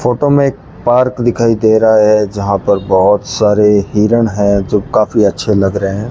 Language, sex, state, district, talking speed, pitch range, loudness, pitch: Hindi, male, Rajasthan, Bikaner, 195 wpm, 100-120 Hz, -12 LUFS, 105 Hz